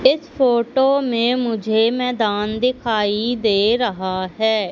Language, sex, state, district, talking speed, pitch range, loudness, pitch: Hindi, female, Madhya Pradesh, Katni, 115 wpm, 215-250 Hz, -18 LUFS, 230 Hz